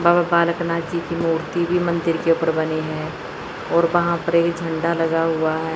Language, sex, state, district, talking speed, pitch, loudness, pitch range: Hindi, male, Chandigarh, Chandigarh, 210 wpm, 170 Hz, -20 LUFS, 165-170 Hz